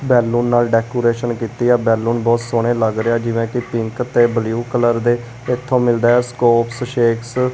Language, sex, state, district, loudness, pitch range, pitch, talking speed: Punjabi, male, Punjab, Kapurthala, -17 LUFS, 115-120 Hz, 120 Hz, 190 wpm